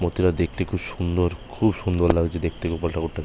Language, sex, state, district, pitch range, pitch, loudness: Bengali, male, West Bengal, Malda, 85-90 Hz, 85 Hz, -24 LUFS